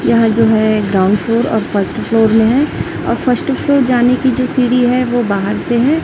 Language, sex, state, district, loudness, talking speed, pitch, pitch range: Hindi, female, Chhattisgarh, Raipur, -13 LUFS, 220 wpm, 235 Hz, 220-255 Hz